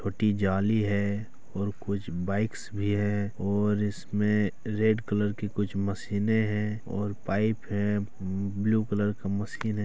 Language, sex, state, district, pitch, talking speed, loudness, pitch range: Hindi, male, Bihar, Araria, 105 Hz, 145 wpm, -29 LUFS, 100-105 Hz